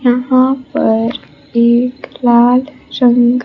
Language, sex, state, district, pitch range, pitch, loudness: Hindi, female, Bihar, Kaimur, 240-255 Hz, 245 Hz, -12 LUFS